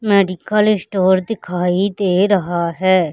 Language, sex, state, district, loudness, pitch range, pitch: Hindi, female, Madhya Pradesh, Katni, -16 LUFS, 180-205 Hz, 190 Hz